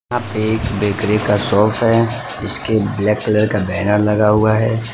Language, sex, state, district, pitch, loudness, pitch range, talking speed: Hindi, male, Gujarat, Valsad, 105 Hz, -16 LUFS, 105-110 Hz, 180 wpm